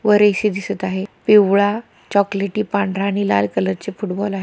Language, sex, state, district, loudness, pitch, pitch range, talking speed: Marathi, female, Maharashtra, Pune, -18 LUFS, 200 Hz, 195-210 Hz, 160 wpm